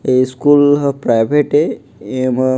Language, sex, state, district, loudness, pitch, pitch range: Chhattisgarhi, male, Chhattisgarh, Jashpur, -14 LUFS, 130 Hz, 130-145 Hz